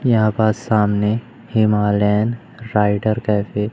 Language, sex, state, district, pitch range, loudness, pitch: Hindi, male, Madhya Pradesh, Umaria, 105-115 Hz, -18 LUFS, 110 Hz